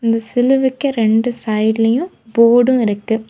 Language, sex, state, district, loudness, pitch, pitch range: Tamil, female, Tamil Nadu, Kanyakumari, -15 LUFS, 230 Hz, 220-250 Hz